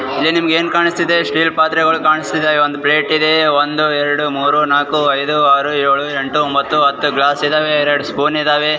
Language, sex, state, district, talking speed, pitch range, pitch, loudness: Kannada, male, Karnataka, Raichur, 170 wpm, 145-155 Hz, 150 Hz, -14 LUFS